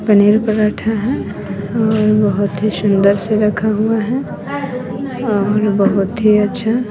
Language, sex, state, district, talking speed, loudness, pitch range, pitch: Hindi, female, Bihar, West Champaran, 130 wpm, -15 LUFS, 205-220 Hz, 215 Hz